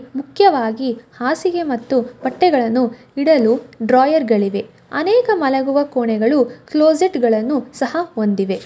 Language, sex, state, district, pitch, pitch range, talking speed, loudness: Kannada, female, Karnataka, Shimoga, 260 Hz, 235-310 Hz, 95 wpm, -17 LUFS